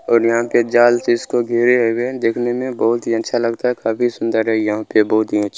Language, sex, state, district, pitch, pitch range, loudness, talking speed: Hindi, male, Bihar, Araria, 115 Hz, 110-120 Hz, -17 LUFS, 260 wpm